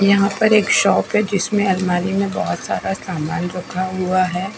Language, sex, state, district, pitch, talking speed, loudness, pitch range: Hindi, female, Punjab, Fazilka, 185 Hz, 185 wpm, -18 LUFS, 180-200 Hz